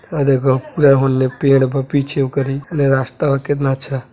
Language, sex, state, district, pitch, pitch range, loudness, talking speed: Bhojpuri, male, Uttar Pradesh, Deoria, 135 Hz, 135-140 Hz, -16 LUFS, 175 wpm